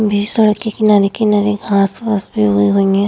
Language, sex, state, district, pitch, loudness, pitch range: Hindi, female, Uttar Pradesh, Hamirpur, 210 Hz, -14 LUFS, 200-215 Hz